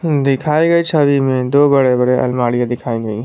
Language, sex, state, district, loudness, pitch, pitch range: Hindi, male, Jharkhand, Garhwa, -14 LUFS, 135 Hz, 125-145 Hz